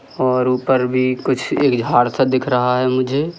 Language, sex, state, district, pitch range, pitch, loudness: Hindi, male, Madhya Pradesh, Katni, 125-130 Hz, 130 Hz, -17 LUFS